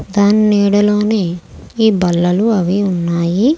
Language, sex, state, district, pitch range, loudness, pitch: Telugu, female, Andhra Pradesh, Krishna, 175-210 Hz, -14 LUFS, 200 Hz